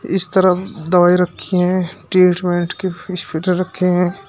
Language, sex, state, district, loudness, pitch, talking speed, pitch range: Hindi, male, Uttar Pradesh, Shamli, -16 LUFS, 180 Hz, 155 wpm, 175-185 Hz